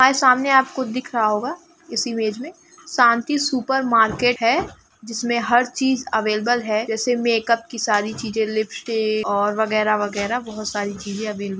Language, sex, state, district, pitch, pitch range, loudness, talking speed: Hindi, female, Chhattisgarh, Sukma, 230 Hz, 215-255 Hz, -20 LUFS, 165 wpm